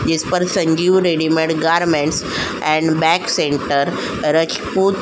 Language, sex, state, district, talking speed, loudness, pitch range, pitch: Hindi, female, Uttar Pradesh, Jyotiba Phule Nagar, 120 wpm, -16 LUFS, 160-180 Hz, 160 Hz